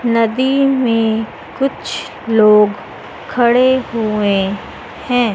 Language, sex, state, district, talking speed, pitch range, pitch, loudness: Hindi, female, Madhya Pradesh, Dhar, 80 wpm, 215-255 Hz, 230 Hz, -15 LUFS